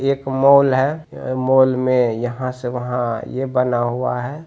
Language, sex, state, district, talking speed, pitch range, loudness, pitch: Hindi, male, Bihar, Begusarai, 160 wpm, 125-135 Hz, -18 LUFS, 130 Hz